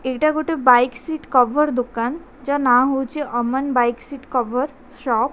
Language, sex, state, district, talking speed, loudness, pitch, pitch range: Odia, female, Odisha, Khordha, 180 wpm, -19 LUFS, 260 Hz, 245-285 Hz